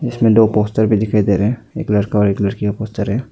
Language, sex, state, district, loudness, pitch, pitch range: Hindi, male, Arunachal Pradesh, Lower Dibang Valley, -16 LUFS, 105 Hz, 105-110 Hz